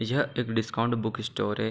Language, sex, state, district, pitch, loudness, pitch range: Hindi, male, Uttar Pradesh, Gorakhpur, 115 Hz, -29 LUFS, 110-120 Hz